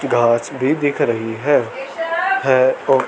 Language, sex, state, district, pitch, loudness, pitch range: Hindi, male, Haryana, Charkhi Dadri, 135 Hz, -17 LUFS, 120-150 Hz